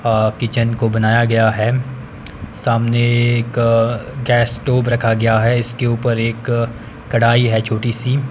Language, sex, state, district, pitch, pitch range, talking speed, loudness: Hindi, male, Himachal Pradesh, Shimla, 115 Hz, 115-120 Hz, 145 wpm, -16 LUFS